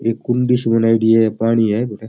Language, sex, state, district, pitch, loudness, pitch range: Rajasthani, male, Rajasthan, Nagaur, 115 Hz, -15 LUFS, 110-115 Hz